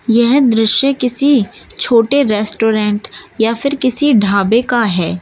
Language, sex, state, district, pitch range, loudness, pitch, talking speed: Hindi, female, Uttar Pradesh, Shamli, 215-260 Hz, -13 LUFS, 230 Hz, 125 wpm